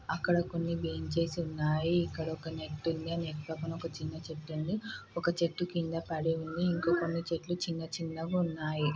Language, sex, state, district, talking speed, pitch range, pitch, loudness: Telugu, female, Andhra Pradesh, Guntur, 115 wpm, 160-170 Hz, 165 Hz, -34 LUFS